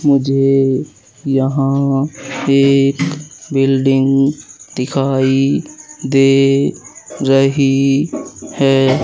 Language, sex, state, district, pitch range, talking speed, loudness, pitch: Hindi, male, Madhya Pradesh, Katni, 135-140 Hz, 55 wpm, -14 LUFS, 135 Hz